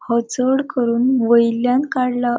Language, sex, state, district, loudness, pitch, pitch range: Konkani, female, Goa, North and South Goa, -17 LUFS, 245 Hz, 235-260 Hz